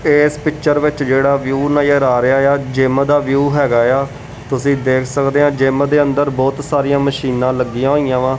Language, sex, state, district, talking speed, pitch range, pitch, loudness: Punjabi, male, Punjab, Kapurthala, 195 wpm, 130-145 Hz, 140 Hz, -14 LUFS